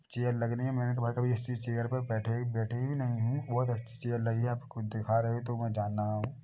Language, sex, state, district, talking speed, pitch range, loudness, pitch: Hindi, male, Chhattisgarh, Bilaspur, 240 wpm, 115-125 Hz, -33 LUFS, 120 Hz